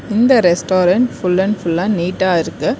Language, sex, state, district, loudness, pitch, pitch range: Tamil, female, Karnataka, Bangalore, -15 LUFS, 185 Hz, 175-230 Hz